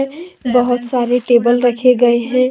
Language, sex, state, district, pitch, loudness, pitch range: Hindi, female, Jharkhand, Deoghar, 245 Hz, -14 LUFS, 240-255 Hz